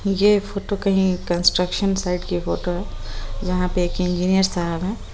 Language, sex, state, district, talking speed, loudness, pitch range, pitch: Hindi, female, Bihar, Muzaffarpur, 165 wpm, -21 LUFS, 175-195 Hz, 180 Hz